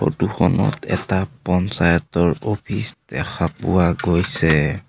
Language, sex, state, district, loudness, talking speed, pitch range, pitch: Assamese, male, Assam, Sonitpur, -19 LUFS, 100 wpm, 85-95 Hz, 85 Hz